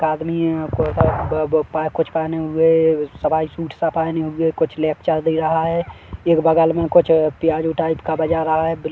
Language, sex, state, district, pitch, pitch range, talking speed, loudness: Hindi, male, Chhattisgarh, Kabirdham, 160 Hz, 155-165 Hz, 210 wpm, -18 LUFS